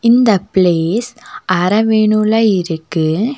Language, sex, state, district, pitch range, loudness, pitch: Tamil, female, Tamil Nadu, Nilgiris, 180-225 Hz, -14 LUFS, 215 Hz